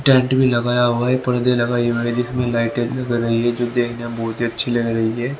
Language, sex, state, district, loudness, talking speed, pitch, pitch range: Hindi, male, Haryana, Rohtak, -19 LUFS, 255 wpm, 120 Hz, 120-125 Hz